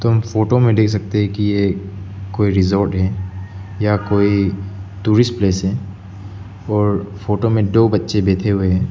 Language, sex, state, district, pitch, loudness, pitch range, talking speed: Hindi, male, Arunachal Pradesh, Lower Dibang Valley, 100 Hz, -17 LUFS, 95-105 Hz, 160 wpm